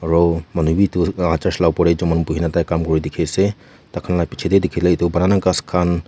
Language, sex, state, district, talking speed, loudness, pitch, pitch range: Nagamese, male, Nagaland, Kohima, 275 wpm, -18 LUFS, 85 Hz, 85-90 Hz